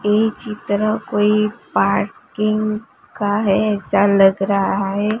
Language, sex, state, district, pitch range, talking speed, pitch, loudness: Hindi, female, Gujarat, Gandhinagar, 200-215 Hz, 115 wpm, 210 Hz, -18 LUFS